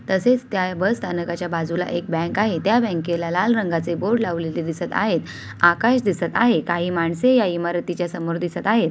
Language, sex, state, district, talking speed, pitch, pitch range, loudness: Marathi, female, Maharashtra, Sindhudurg, 160 wpm, 175 Hz, 170-220 Hz, -21 LUFS